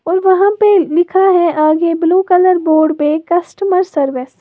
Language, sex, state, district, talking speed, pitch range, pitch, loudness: Hindi, female, Uttar Pradesh, Lalitpur, 175 wpm, 315-375 Hz, 345 Hz, -12 LUFS